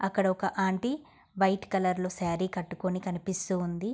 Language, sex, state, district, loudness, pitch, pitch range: Telugu, female, Andhra Pradesh, Guntur, -30 LUFS, 185 Hz, 180-195 Hz